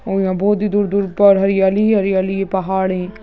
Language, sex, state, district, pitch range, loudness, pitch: Hindi, female, Bihar, Gaya, 190-205 Hz, -16 LUFS, 195 Hz